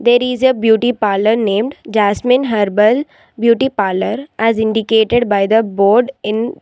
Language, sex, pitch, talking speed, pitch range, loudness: English, female, 225 Hz, 155 wpm, 210-245 Hz, -14 LUFS